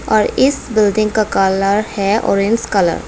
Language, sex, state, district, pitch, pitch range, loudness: Hindi, female, Tripura, West Tripura, 215 Hz, 200-220 Hz, -15 LUFS